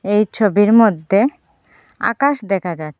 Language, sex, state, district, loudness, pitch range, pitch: Bengali, female, Assam, Hailakandi, -16 LUFS, 195-230 Hz, 205 Hz